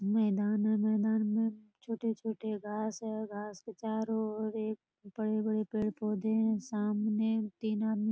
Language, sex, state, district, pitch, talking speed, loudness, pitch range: Hindi, female, Bihar, Purnia, 215 Hz, 175 wpm, -34 LUFS, 210-220 Hz